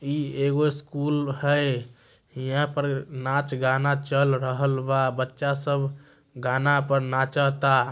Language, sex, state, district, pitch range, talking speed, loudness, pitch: Magahi, male, Bihar, Samastipur, 130-145 Hz, 130 wpm, -25 LUFS, 140 Hz